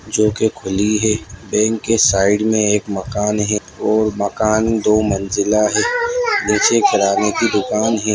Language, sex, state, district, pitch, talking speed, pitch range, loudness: Hindi, male, Uttar Pradesh, Etah, 105 Hz, 155 wpm, 105-110 Hz, -16 LUFS